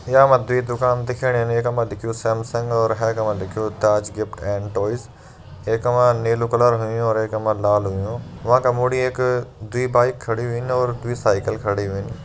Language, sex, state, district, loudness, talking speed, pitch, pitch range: Hindi, male, Uttarakhand, Uttarkashi, -20 LUFS, 195 wpm, 115 Hz, 110-125 Hz